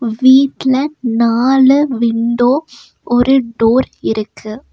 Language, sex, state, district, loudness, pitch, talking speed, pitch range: Tamil, female, Tamil Nadu, Nilgiris, -13 LUFS, 245 Hz, 75 wpm, 230-270 Hz